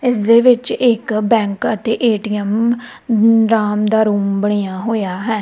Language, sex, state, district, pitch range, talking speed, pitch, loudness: Punjabi, female, Punjab, Kapurthala, 210-230 Hz, 135 wpm, 220 Hz, -15 LUFS